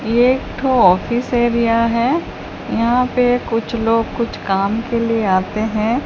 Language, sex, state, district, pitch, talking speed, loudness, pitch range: Hindi, female, Odisha, Sambalpur, 230 Hz, 150 wpm, -17 LUFS, 225-245 Hz